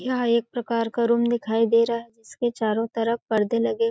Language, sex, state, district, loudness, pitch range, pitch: Hindi, female, Chhattisgarh, Balrampur, -23 LUFS, 225-235 Hz, 230 Hz